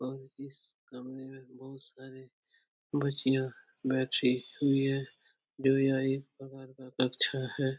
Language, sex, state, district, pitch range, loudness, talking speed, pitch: Hindi, male, Uttar Pradesh, Etah, 130-135 Hz, -31 LUFS, 130 wpm, 135 Hz